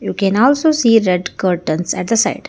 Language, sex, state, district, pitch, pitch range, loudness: English, female, Karnataka, Bangalore, 195 Hz, 180-235 Hz, -15 LUFS